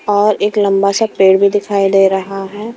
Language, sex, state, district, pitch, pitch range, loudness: Hindi, female, Himachal Pradesh, Shimla, 200 Hz, 195-210 Hz, -13 LUFS